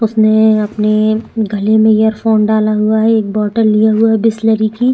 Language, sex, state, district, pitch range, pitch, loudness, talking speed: Hindi, female, Chhattisgarh, Sukma, 215-220 Hz, 220 Hz, -12 LUFS, 180 wpm